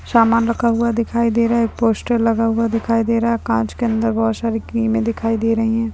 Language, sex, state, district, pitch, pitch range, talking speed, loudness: Hindi, female, Uttar Pradesh, Ghazipur, 230 Hz, 225-230 Hz, 285 wpm, -18 LUFS